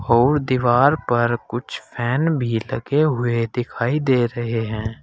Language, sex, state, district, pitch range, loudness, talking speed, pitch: Hindi, male, Uttar Pradesh, Saharanpur, 115-135 Hz, -20 LUFS, 145 wpm, 120 Hz